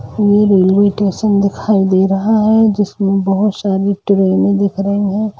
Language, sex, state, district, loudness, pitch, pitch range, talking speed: Hindi, female, Jharkhand, Jamtara, -13 LUFS, 200 Hz, 195-205 Hz, 165 wpm